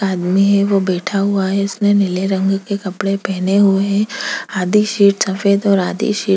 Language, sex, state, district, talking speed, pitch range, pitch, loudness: Hindi, female, Chhattisgarh, Kabirdham, 190 wpm, 190-200 Hz, 195 Hz, -16 LUFS